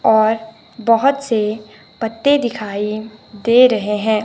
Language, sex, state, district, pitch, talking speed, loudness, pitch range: Hindi, male, Himachal Pradesh, Shimla, 220 Hz, 115 wpm, -16 LUFS, 215-230 Hz